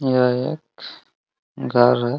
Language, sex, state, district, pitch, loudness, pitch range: Hindi, male, Uttar Pradesh, Ghazipur, 125 Hz, -19 LUFS, 120-130 Hz